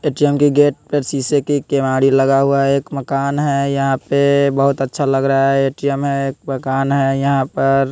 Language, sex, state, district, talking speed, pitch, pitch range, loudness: Hindi, male, Bihar, West Champaran, 205 wpm, 140 Hz, 135-140 Hz, -16 LUFS